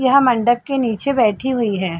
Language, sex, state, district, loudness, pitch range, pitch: Hindi, female, Chhattisgarh, Sarguja, -17 LUFS, 220-265 Hz, 240 Hz